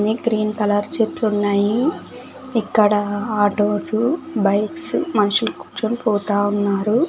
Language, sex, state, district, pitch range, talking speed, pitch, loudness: Telugu, female, Andhra Pradesh, Sri Satya Sai, 205-230 Hz, 100 wpm, 215 Hz, -19 LUFS